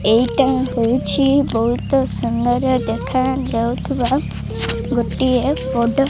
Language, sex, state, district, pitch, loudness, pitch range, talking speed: Odia, female, Odisha, Malkangiri, 250 Hz, -18 LUFS, 235-260 Hz, 80 wpm